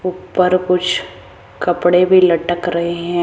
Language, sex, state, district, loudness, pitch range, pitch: Hindi, female, Rajasthan, Jaipur, -15 LUFS, 175-185 Hz, 180 Hz